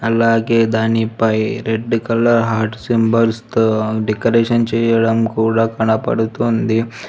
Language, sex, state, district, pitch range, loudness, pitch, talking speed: Telugu, female, Telangana, Hyderabad, 110-115 Hz, -16 LUFS, 115 Hz, 95 wpm